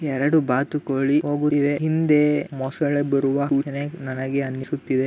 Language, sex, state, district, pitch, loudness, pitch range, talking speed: Kannada, male, Karnataka, Gulbarga, 140 Hz, -22 LUFS, 135-150 Hz, 120 wpm